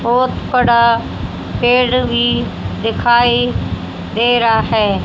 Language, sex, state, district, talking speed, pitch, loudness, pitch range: Hindi, female, Haryana, Rohtak, 95 wpm, 240 Hz, -14 LUFS, 235-245 Hz